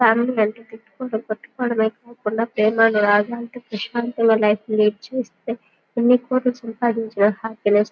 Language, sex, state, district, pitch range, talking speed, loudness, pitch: Telugu, female, Andhra Pradesh, Guntur, 215-235 Hz, 120 wpm, -20 LUFS, 225 Hz